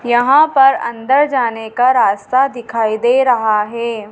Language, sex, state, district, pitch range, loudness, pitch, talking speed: Hindi, female, Madhya Pradesh, Dhar, 225-265 Hz, -14 LUFS, 240 Hz, 145 wpm